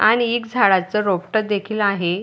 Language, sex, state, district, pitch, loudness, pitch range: Marathi, female, Maharashtra, Dhule, 210 Hz, -19 LUFS, 195-220 Hz